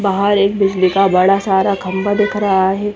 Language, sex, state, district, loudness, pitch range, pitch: Hindi, female, Chandigarh, Chandigarh, -14 LUFS, 190-205 Hz, 195 Hz